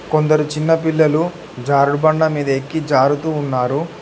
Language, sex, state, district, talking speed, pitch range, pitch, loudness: Telugu, male, Telangana, Hyderabad, 120 wpm, 140-160 Hz, 150 Hz, -17 LUFS